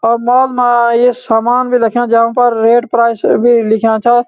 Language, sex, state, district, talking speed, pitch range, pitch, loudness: Garhwali, male, Uttarakhand, Uttarkashi, 195 wpm, 230-245 Hz, 240 Hz, -11 LUFS